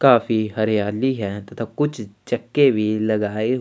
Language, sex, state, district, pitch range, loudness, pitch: Hindi, male, Chhattisgarh, Sukma, 105-125 Hz, -21 LUFS, 110 Hz